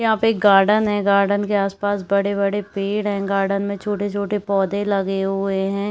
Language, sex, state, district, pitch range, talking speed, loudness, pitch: Hindi, female, Uttar Pradesh, Varanasi, 195-205 Hz, 185 wpm, -20 LUFS, 200 Hz